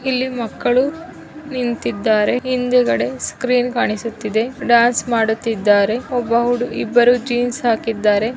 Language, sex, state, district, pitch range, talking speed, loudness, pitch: Kannada, female, Karnataka, Belgaum, 220-250 Hz, 95 wpm, -17 LUFS, 240 Hz